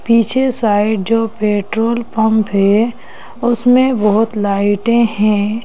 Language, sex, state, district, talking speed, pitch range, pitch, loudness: Hindi, female, Madhya Pradesh, Bhopal, 105 wpm, 210-235 Hz, 220 Hz, -14 LUFS